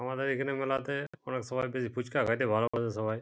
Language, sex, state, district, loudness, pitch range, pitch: Bengali, male, West Bengal, Purulia, -32 LUFS, 120-135 Hz, 130 Hz